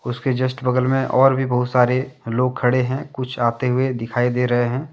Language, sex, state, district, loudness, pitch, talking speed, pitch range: Hindi, male, Jharkhand, Deoghar, -20 LUFS, 125 Hz, 220 wpm, 125-130 Hz